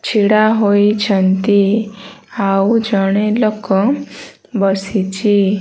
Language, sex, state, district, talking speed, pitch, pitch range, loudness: Odia, female, Odisha, Malkangiri, 65 wpm, 205 Hz, 195-215 Hz, -14 LUFS